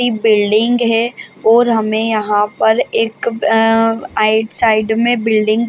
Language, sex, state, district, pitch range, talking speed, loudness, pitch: Hindi, female, Maharashtra, Chandrapur, 215-230 Hz, 135 wpm, -14 LUFS, 225 Hz